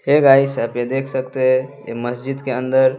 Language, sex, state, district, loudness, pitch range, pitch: Hindi, male, Bihar, West Champaran, -18 LUFS, 130-135 Hz, 130 Hz